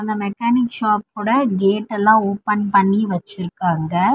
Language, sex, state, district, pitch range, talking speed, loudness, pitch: Tamil, female, Tamil Nadu, Chennai, 195-220 Hz, 100 wpm, -18 LUFS, 210 Hz